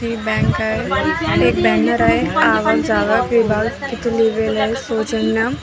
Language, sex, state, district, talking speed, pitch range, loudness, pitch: Marathi, female, Maharashtra, Washim, 160 wpm, 220-235 Hz, -17 LUFS, 225 Hz